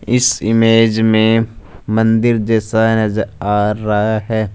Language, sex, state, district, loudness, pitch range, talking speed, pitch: Hindi, male, Punjab, Fazilka, -14 LUFS, 105-115 Hz, 65 wpm, 110 Hz